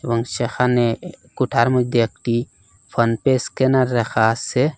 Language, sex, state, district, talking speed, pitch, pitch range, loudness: Bengali, male, Assam, Hailakandi, 100 wpm, 120 Hz, 115-130 Hz, -19 LUFS